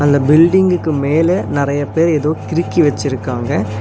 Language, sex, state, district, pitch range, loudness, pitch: Tamil, male, Tamil Nadu, Nilgiris, 140-165 Hz, -14 LUFS, 145 Hz